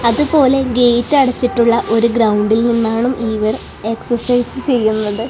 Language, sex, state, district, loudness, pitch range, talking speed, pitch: Malayalam, female, Kerala, Kasaragod, -14 LUFS, 225-250 Hz, 100 wpm, 235 Hz